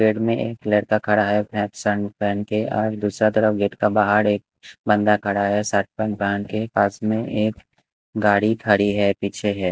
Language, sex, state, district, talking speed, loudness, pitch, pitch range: Hindi, male, Chhattisgarh, Raipur, 200 wpm, -21 LUFS, 105 Hz, 100-110 Hz